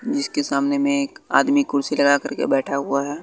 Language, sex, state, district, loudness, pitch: Hindi, male, Bihar, West Champaran, -20 LUFS, 145 Hz